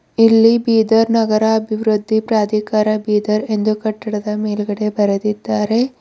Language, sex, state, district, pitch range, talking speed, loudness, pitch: Kannada, female, Karnataka, Bidar, 210-225 Hz, 100 wpm, -16 LUFS, 215 Hz